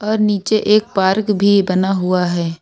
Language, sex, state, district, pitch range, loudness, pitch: Hindi, female, Uttar Pradesh, Lucknow, 185-210 Hz, -15 LUFS, 195 Hz